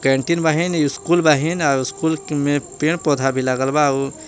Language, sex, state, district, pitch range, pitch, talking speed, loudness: Bhojpuri, male, Jharkhand, Palamu, 135-160 Hz, 145 Hz, 170 wpm, -18 LUFS